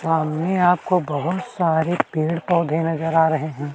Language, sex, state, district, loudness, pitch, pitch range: Hindi, male, Chhattisgarh, Kabirdham, -20 LUFS, 165 Hz, 155-175 Hz